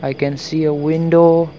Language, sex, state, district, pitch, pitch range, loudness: English, male, Arunachal Pradesh, Longding, 160 Hz, 145-165 Hz, -15 LUFS